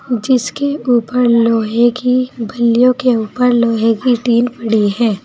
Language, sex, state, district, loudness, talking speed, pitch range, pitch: Hindi, female, Uttar Pradesh, Saharanpur, -14 LUFS, 135 wpm, 230-250 Hz, 240 Hz